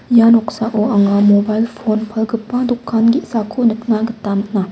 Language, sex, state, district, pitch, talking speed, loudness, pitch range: Garo, female, Meghalaya, West Garo Hills, 220 Hz, 140 wpm, -15 LUFS, 210-230 Hz